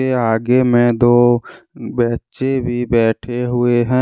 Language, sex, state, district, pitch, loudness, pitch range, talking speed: Hindi, male, Jharkhand, Deoghar, 120 Hz, -16 LUFS, 120-125 Hz, 135 wpm